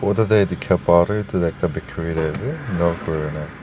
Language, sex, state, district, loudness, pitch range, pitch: Nagamese, male, Nagaland, Dimapur, -20 LUFS, 80-100 Hz, 85 Hz